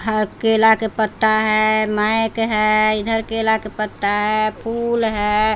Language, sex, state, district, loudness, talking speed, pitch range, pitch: Hindi, female, Bihar, Patna, -17 LUFS, 150 wpm, 215-225 Hz, 215 Hz